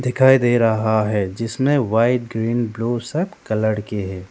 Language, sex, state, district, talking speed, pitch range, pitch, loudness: Hindi, male, Arunachal Pradesh, Lower Dibang Valley, 165 wpm, 110-125 Hz, 115 Hz, -19 LUFS